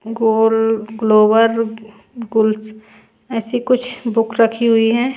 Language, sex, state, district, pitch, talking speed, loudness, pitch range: Hindi, female, Punjab, Pathankot, 225 Hz, 115 wpm, -16 LUFS, 220-230 Hz